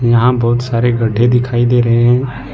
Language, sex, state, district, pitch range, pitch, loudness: Hindi, male, Jharkhand, Ranchi, 120-125 Hz, 120 Hz, -13 LUFS